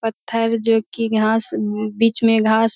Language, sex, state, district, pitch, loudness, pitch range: Hindi, female, Bihar, Purnia, 225 Hz, -18 LUFS, 220-225 Hz